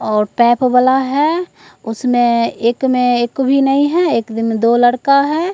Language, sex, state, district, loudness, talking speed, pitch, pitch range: Hindi, female, Bihar, Begusarai, -14 LUFS, 175 wpm, 250 Hz, 235-275 Hz